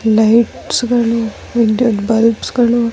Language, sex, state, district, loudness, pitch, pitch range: Kannada, female, Karnataka, Dharwad, -14 LUFS, 230 Hz, 225-240 Hz